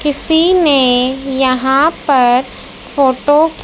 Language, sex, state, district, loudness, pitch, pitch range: Hindi, female, Madhya Pradesh, Dhar, -12 LUFS, 275 Hz, 260-300 Hz